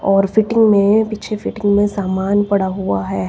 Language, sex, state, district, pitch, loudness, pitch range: Hindi, female, Himachal Pradesh, Shimla, 200 Hz, -16 LUFS, 190-215 Hz